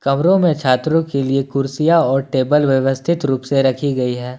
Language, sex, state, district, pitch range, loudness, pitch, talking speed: Hindi, male, Jharkhand, Ranchi, 130-155 Hz, -16 LUFS, 135 Hz, 180 wpm